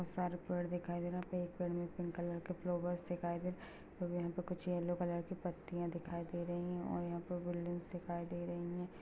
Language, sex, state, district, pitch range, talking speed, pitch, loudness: Hindi, female, Bihar, Darbhanga, 175-180 Hz, 260 wpm, 175 Hz, -42 LUFS